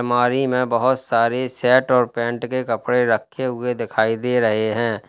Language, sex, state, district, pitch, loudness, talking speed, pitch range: Hindi, male, Uttar Pradesh, Lalitpur, 120 Hz, -19 LUFS, 175 wpm, 115-125 Hz